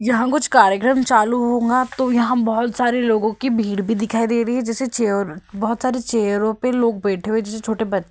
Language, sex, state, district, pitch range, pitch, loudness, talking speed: Hindi, female, Uttar Pradesh, Hamirpur, 220-245 Hz, 230 Hz, -19 LUFS, 220 wpm